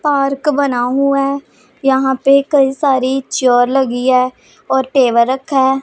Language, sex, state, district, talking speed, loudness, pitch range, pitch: Hindi, female, Punjab, Pathankot, 135 wpm, -14 LUFS, 260-275 Hz, 270 Hz